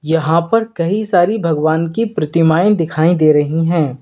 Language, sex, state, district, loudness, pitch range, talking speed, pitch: Hindi, male, Uttar Pradesh, Lalitpur, -14 LUFS, 160-180 Hz, 165 wpm, 165 Hz